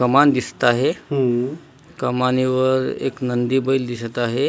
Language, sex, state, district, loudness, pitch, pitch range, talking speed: Marathi, male, Maharashtra, Washim, -20 LUFS, 130 Hz, 120-135 Hz, 120 wpm